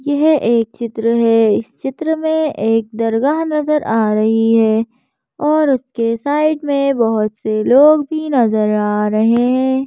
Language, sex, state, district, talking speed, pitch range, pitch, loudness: Hindi, female, Madhya Pradesh, Bhopal, 145 wpm, 225-295 Hz, 235 Hz, -15 LUFS